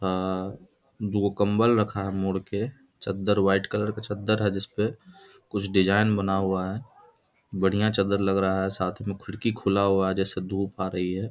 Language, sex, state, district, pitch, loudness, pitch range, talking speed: Hindi, male, Bihar, Darbhanga, 100 Hz, -26 LUFS, 95-105 Hz, 185 wpm